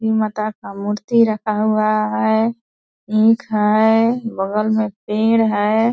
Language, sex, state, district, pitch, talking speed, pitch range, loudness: Hindi, female, Bihar, Purnia, 215 Hz, 140 wpm, 215-225 Hz, -17 LUFS